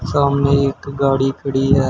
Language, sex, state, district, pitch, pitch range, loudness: Hindi, male, Uttar Pradesh, Shamli, 140 Hz, 135-140 Hz, -17 LUFS